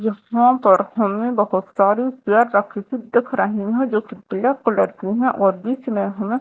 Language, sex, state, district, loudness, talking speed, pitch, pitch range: Hindi, female, Madhya Pradesh, Dhar, -19 LUFS, 185 wpm, 220 Hz, 200-245 Hz